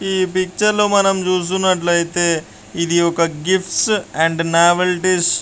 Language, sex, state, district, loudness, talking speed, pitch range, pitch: Telugu, male, Andhra Pradesh, Guntur, -16 LUFS, 110 wpm, 170-190 Hz, 180 Hz